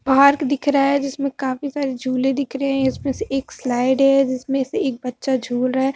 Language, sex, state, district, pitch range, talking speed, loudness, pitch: Hindi, female, Bihar, Vaishali, 260-275 Hz, 230 wpm, -20 LUFS, 270 Hz